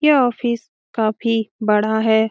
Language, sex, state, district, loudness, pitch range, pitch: Hindi, female, Bihar, Jamui, -19 LUFS, 220-240 Hz, 225 Hz